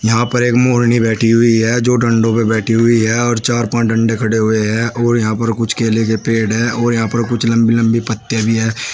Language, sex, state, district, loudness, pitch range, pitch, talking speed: Hindi, male, Uttar Pradesh, Shamli, -14 LUFS, 115-120 Hz, 115 Hz, 240 wpm